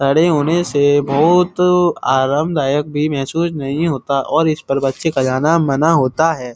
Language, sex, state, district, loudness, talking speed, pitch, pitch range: Hindi, male, Uttar Pradesh, Muzaffarnagar, -15 LUFS, 165 wpm, 150 Hz, 135-165 Hz